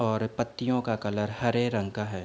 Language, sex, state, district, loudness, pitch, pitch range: Hindi, male, Uttar Pradesh, Budaun, -29 LUFS, 110 Hz, 105-120 Hz